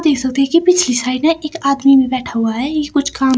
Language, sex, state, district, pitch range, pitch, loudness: Hindi, female, Himachal Pradesh, Shimla, 260-305 Hz, 275 Hz, -14 LUFS